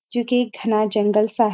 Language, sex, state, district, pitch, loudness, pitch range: Hindi, female, Uttarakhand, Uttarkashi, 220 Hz, -20 LUFS, 215-240 Hz